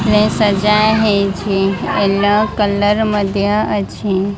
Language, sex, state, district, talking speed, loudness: Odia, female, Odisha, Malkangiri, 80 wpm, -14 LUFS